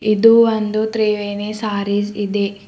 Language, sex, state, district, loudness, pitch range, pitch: Kannada, female, Karnataka, Bidar, -17 LUFS, 205-215 Hz, 210 Hz